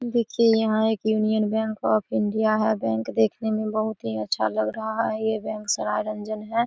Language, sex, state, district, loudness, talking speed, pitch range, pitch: Hindi, female, Bihar, Samastipur, -24 LUFS, 190 wpm, 210-220 Hz, 215 Hz